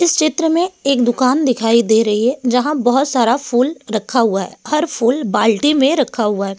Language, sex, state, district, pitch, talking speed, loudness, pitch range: Hindi, female, Delhi, New Delhi, 250 Hz, 210 wpm, -15 LUFS, 230-295 Hz